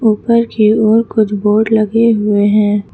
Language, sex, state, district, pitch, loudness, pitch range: Hindi, female, Uttar Pradesh, Lucknow, 215 Hz, -12 LUFS, 210-225 Hz